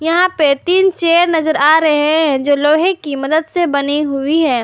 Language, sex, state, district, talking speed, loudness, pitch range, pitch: Hindi, female, Jharkhand, Garhwa, 205 wpm, -13 LUFS, 285-335 Hz, 315 Hz